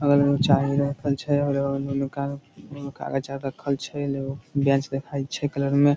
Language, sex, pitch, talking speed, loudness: Maithili, male, 140 Hz, 180 wpm, -25 LUFS